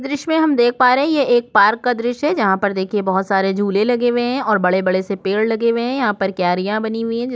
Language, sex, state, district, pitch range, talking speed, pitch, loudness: Hindi, female, Chhattisgarh, Korba, 195-245 Hz, 270 wpm, 225 Hz, -17 LUFS